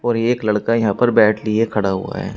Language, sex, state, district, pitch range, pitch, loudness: Hindi, male, Uttar Pradesh, Shamli, 105-115 Hz, 110 Hz, -17 LUFS